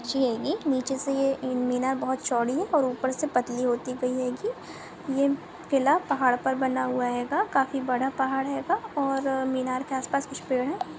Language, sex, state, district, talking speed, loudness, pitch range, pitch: Hindi, female, Maharashtra, Aurangabad, 185 wpm, -27 LUFS, 255-275 Hz, 265 Hz